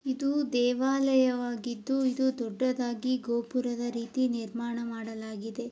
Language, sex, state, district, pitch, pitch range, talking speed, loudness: Kannada, female, Karnataka, Gulbarga, 245 Hz, 235-260 Hz, 85 wpm, -30 LUFS